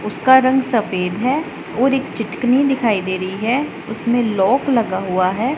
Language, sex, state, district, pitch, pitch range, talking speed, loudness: Hindi, female, Punjab, Pathankot, 240 Hz, 195-265 Hz, 170 wpm, -17 LUFS